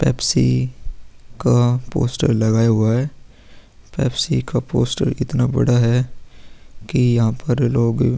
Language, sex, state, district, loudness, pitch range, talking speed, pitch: Hindi, male, Uttar Pradesh, Hamirpur, -18 LUFS, 110-125 Hz, 125 wpm, 120 Hz